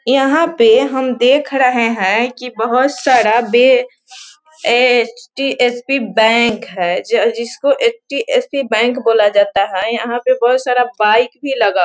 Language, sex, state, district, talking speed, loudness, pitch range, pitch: Hindi, female, Bihar, Sitamarhi, 130 wpm, -14 LUFS, 230-275 Hz, 250 Hz